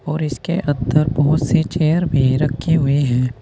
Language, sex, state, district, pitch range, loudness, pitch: Hindi, male, Uttar Pradesh, Saharanpur, 135-160 Hz, -17 LUFS, 150 Hz